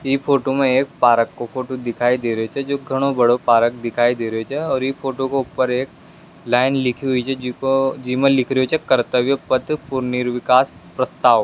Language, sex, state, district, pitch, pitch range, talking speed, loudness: Rajasthani, male, Rajasthan, Nagaur, 130 Hz, 120-135 Hz, 195 wpm, -19 LUFS